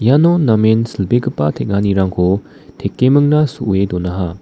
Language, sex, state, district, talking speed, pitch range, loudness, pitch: Garo, male, Meghalaya, West Garo Hills, 95 wpm, 95-125 Hz, -15 LUFS, 100 Hz